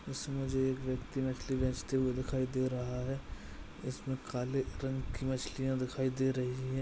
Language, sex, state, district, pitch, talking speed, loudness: Hindi, male, Bihar, Madhepura, 130 Hz, 175 wpm, -36 LUFS